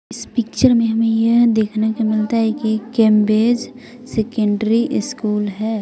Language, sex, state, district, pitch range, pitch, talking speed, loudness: Hindi, female, Bihar, West Champaran, 215-230 Hz, 220 Hz, 145 wpm, -17 LUFS